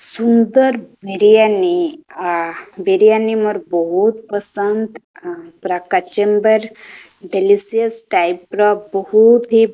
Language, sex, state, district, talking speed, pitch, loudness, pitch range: Odia, female, Odisha, Khordha, 100 wpm, 215 Hz, -15 LUFS, 195-230 Hz